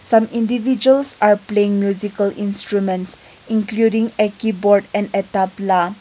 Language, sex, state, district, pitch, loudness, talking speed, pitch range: English, female, Nagaland, Kohima, 205 Hz, -18 LUFS, 120 wpm, 200-225 Hz